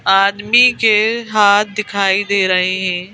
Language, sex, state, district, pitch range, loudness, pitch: Hindi, female, Madhya Pradesh, Bhopal, 190-215 Hz, -13 LUFS, 205 Hz